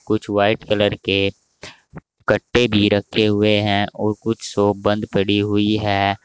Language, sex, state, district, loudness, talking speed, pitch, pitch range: Hindi, male, Uttar Pradesh, Saharanpur, -18 LUFS, 155 wpm, 105 Hz, 100-105 Hz